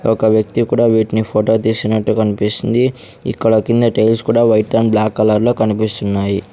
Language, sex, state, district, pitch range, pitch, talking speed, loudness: Telugu, male, Andhra Pradesh, Sri Satya Sai, 105-115 Hz, 110 Hz, 145 wpm, -14 LUFS